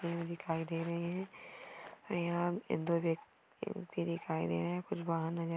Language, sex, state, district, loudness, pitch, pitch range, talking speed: Hindi, female, Maharashtra, Aurangabad, -38 LUFS, 170 Hz, 165-170 Hz, 160 wpm